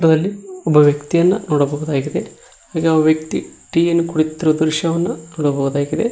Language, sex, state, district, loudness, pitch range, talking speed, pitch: Kannada, male, Karnataka, Koppal, -17 LUFS, 150-170 Hz, 115 wpm, 155 Hz